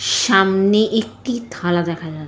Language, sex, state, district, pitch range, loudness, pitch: Bengali, female, West Bengal, Jalpaiguri, 175-220 Hz, -17 LUFS, 195 Hz